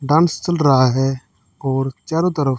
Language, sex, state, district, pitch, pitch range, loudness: Hindi, female, Haryana, Charkhi Dadri, 135 Hz, 135-160 Hz, -18 LUFS